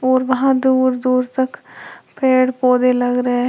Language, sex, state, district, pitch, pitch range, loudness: Hindi, female, Uttar Pradesh, Lalitpur, 255 Hz, 250-260 Hz, -16 LUFS